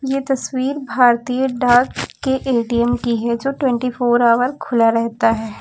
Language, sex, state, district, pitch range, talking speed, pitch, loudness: Hindi, female, Uttar Pradesh, Lucknow, 235-265 Hz, 160 wpm, 245 Hz, -17 LUFS